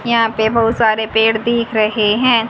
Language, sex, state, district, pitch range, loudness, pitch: Hindi, female, Haryana, Jhajjar, 220-235 Hz, -14 LUFS, 225 Hz